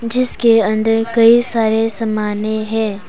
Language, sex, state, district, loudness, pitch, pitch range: Hindi, female, Arunachal Pradesh, Papum Pare, -15 LUFS, 225 Hz, 215-230 Hz